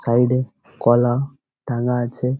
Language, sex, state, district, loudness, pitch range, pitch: Bengali, male, West Bengal, Malda, -20 LUFS, 120-130 Hz, 125 Hz